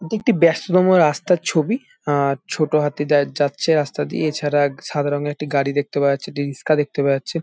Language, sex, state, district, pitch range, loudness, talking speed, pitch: Bengali, male, West Bengal, Jalpaiguri, 140-165 Hz, -19 LUFS, 200 wpm, 145 Hz